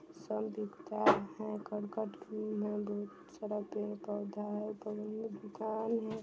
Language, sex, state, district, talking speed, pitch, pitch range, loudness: Maithili, female, Bihar, Vaishali, 175 wpm, 210 Hz, 210-220 Hz, -38 LUFS